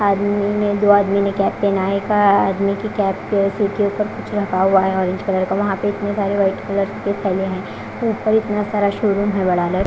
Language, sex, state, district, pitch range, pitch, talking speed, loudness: Hindi, female, Punjab, Fazilka, 195-205 Hz, 200 Hz, 245 wpm, -18 LUFS